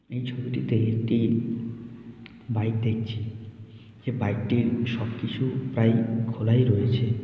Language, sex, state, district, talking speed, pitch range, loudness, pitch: Bengali, male, West Bengal, Malda, 115 wpm, 110-120 Hz, -26 LUFS, 115 Hz